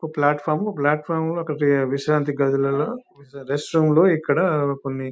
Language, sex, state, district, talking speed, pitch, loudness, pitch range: Telugu, male, Telangana, Nalgonda, 130 wpm, 145 Hz, -21 LUFS, 140-160 Hz